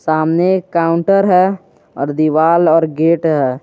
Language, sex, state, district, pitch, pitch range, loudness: Hindi, male, Jharkhand, Garhwa, 165 Hz, 155-180 Hz, -13 LUFS